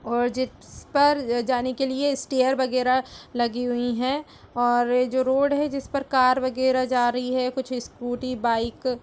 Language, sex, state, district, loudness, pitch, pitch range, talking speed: Hindi, female, Uttar Pradesh, Etah, -24 LUFS, 255 Hz, 245-265 Hz, 180 wpm